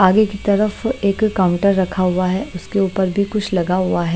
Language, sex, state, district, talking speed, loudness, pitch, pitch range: Hindi, female, Himachal Pradesh, Shimla, 215 wpm, -18 LUFS, 195 Hz, 185-200 Hz